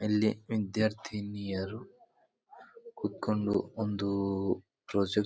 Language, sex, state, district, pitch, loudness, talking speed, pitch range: Kannada, male, Karnataka, Bijapur, 105 Hz, -33 LUFS, 70 wpm, 100-110 Hz